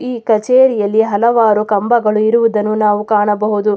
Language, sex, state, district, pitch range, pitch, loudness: Kannada, female, Karnataka, Mysore, 210-230 Hz, 215 Hz, -13 LUFS